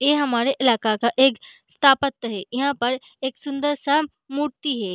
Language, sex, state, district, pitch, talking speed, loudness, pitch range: Hindi, female, Chhattisgarh, Balrampur, 270 Hz, 155 wpm, -21 LUFS, 240-285 Hz